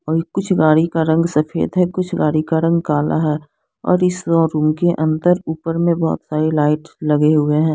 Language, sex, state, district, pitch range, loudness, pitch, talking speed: Hindi, female, Bihar, Patna, 155-170 Hz, -17 LUFS, 160 Hz, 210 wpm